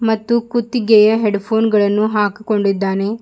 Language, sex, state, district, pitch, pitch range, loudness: Kannada, female, Karnataka, Bidar, 215 Hz, 205-225 Hz, -15 LUFS